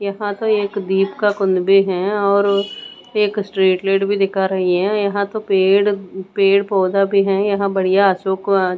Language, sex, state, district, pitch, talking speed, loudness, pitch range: Hindi, female, Maharashtra, Mumbai Suburban, 195 Hz, 190 wpm, -17 LUFS, 190-200 Hz